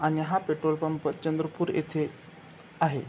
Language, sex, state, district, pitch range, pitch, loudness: Marathi, male, Maharashtra, Chandrapur, 155-160 Hz, 155 Hz, -29 LUFS